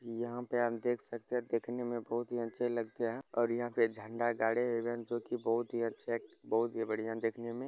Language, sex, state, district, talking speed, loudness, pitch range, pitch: Hindi, male, Bihar, Gopalganj, 240 wpm, -36 LUFS, 115-120 Hz, 120 Hz